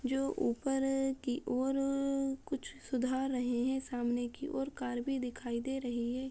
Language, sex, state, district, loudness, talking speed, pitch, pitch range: Hindi, female, Uttar Pradesh, Muzaffarnagar, -35 LUFS, 160 wpm, 265 Hz, 245-270 Hz